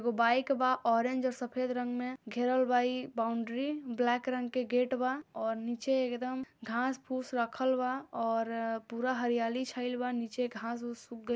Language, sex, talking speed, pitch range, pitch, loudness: Bhojpuri, female, 190 wpm, 235-255 Hz, 245 Hz, -33 LUFS